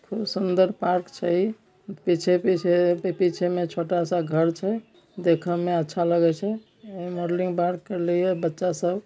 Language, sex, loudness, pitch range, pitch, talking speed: Maithili, male, -24 LUFS, 175-185 Hz, 180 Hz, 160 wpm